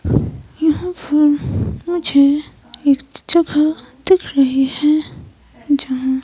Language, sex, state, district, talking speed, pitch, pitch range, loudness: Hindi, female, Himachal Pradesh, Shimla, 85 wpm, 295 Hz, 270-315 Hz, -16 LUFS